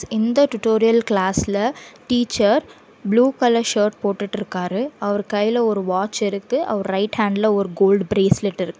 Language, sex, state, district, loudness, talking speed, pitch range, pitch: Tamil, female, Karnataka, Bangalore, -19 LUFS, 130 wpm, 200-230 Hz, 210 Hz